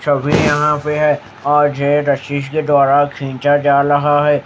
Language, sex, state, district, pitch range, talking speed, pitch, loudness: Hindi, male, Haryana, Jhajjar, 140-145 Hz, 160 wpm, 145 Hz, -14 LUFS